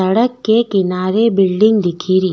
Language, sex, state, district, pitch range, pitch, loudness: Rajasthani, female, Rajasthan, Nagaur, 185-220 Hz, 195 Hz, -14 LUFS